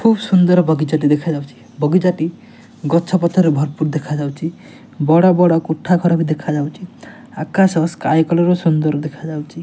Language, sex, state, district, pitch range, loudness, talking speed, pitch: Odia, male, Odisha, Nuapada, 155-180 Hz, -16 LUFS, 135 wpm, 165 Hz